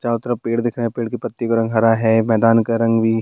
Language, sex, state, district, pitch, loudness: Hindi, male, Bihar, Bhagalpur, 115 Hz, -18 LUFS